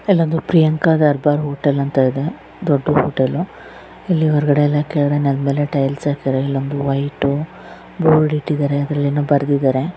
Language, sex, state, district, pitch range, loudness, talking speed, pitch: Kannada, female, Karnataka, Raichur, 140-155 Hz, -17 LUFS, 120 wpm, 145 Hz